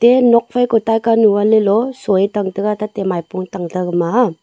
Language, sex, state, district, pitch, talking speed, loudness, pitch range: Wancho, female, Arunachal Pradesh, Longding, 210 Hz, 205 wpm, -15 LUFS, 190-230 Hz